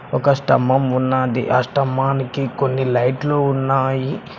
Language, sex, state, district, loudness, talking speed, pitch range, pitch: Telugu, male, Telangana, Mahabubabad, -18 LUFS, 110 wpm, 130-135 Hz, 135 Hz